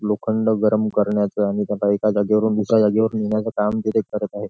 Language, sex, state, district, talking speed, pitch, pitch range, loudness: Marathi, male, Maharashtra, Nagpur, 185 wpm, 105 Hz, 105-110 Hz, -20 LUFS